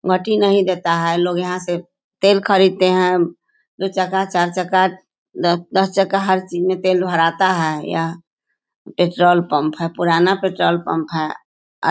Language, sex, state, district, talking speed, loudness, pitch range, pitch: Hindi, female, Bihar, Sitamarhi, 170 wpm, -17 LUFS, 170-190 Hz, 180 Hz